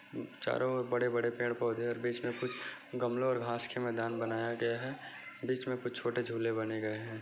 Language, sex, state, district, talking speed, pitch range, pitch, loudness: Hindi, male, Chhattisgarh, Bastar, 215 wpm, 115-125 Hz, 120 Hz, -36 LUFS